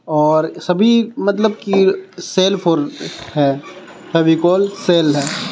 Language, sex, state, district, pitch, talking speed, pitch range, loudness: Hindi, male, Jharkhand, Garhwa, 180 Hz, 110 wpm, 155-195 Hz, -16 LUFS